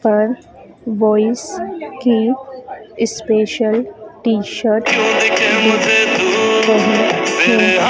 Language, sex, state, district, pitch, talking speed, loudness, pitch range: Hindi, female, Madhya Pradesh, Dhar, 220 Hz, 55 wpm, -14 LUFS, 215-230 Hz